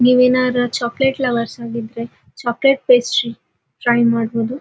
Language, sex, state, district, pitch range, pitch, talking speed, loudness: Kannada, female, Karnataka, Dharwad, 235-250 Hz, 240 Hz, 105 wpm, -17 LUFS